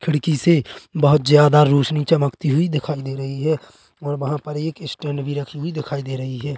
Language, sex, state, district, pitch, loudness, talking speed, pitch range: Hindi, male, Chhattisgarh, Bilaspur, 150 Hz, -19 LUFS, 210 wpm, 140-155 Hz